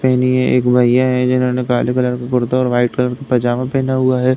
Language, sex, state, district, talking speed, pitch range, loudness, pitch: Hindi, male, Uttar Pradesh, Deoria, 245 wpm, 125-130 Hz, -15 LUFS, 125 Hz